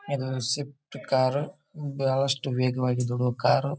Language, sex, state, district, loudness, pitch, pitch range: Kannada, male, Karnataka, Bijapur, -27 LUFS, 135 Hz, 125-145 Hz